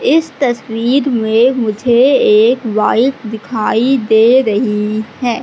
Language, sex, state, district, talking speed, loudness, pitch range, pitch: Hindi, female, Madhya Pradesh, Katni, 110 wpm, -12 LUFS, 220-260 Hz, 235 Hz